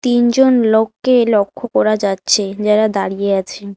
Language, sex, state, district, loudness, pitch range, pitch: Bengali, female, West Bengal, Alipurduar, -14 LUFS, 200-235 Hz, 210 Hz